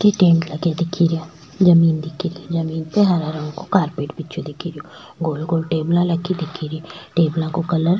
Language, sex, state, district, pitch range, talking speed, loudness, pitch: Rajasthani, female, Rajasthan, Churu, 160-175 Hz, 195 wpm, -20 LUFS, 165 Hz